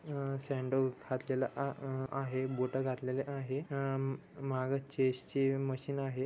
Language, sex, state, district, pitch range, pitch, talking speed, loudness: Marathi, male, Maharashtra, Dhule, 130-135 Hz, 135 Hz, 135 wpm, -36 LUFS